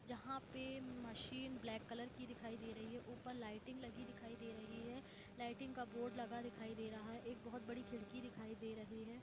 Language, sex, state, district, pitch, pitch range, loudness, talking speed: Hindi, female, Jharkhand, Jamtara, 235 Hz, 225-245 Hz, -51 LUFS, 210 wpm